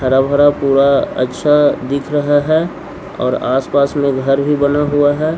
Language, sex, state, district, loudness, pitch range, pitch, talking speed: Hindi, male, Bihar, Patna, -14 LUFS, 140-145 Hz, 145 Hz, 180 wpm